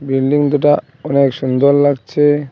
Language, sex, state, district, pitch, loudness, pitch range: Bengali, male, Assam, Hailakandi, 140 Hz, -14 LUFS, 135-145 Hz